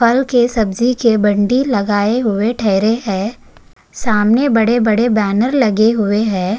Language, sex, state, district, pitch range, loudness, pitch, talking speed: Hindi, female, Maharashtra, Chandrapur, 205-240 Hz, -14 LUFS, 220 Hz, 145 wpm